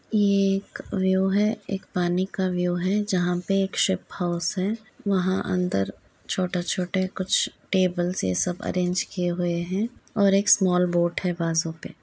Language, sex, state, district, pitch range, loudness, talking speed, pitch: Hindi, female, Uttar Pradesh, Varanasi, 175-195 Hz, -25 LUFS, 165 wpm, 185 Hz